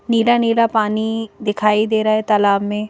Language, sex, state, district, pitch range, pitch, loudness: Hindi, female, Madhya Pradesh, Bhopal, 210-230 Hz, 215 Hz, -17 LUFS